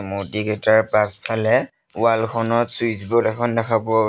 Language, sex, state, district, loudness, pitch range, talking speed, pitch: Assamese, male, Assam, Sonitpur, -19 LUFS, 105-115 Hz, 145 wpm, 110 Hz